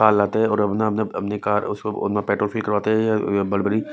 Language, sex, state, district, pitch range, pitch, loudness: Hindi, male, Chhattisgarh, Raipur, 100-110 Hz, 105 Hz, -21 LUFS